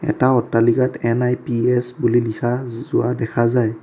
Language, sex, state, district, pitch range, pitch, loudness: Assamese, male, Assam, Kamrup Metropolitan, 115-125 Hz, 120 Hz, -19 LUFS